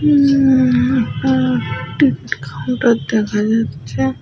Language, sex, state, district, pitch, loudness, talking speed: Bengali, female, West Bengal, Malda, 160 Hz, -16 LUFS, 85 wpm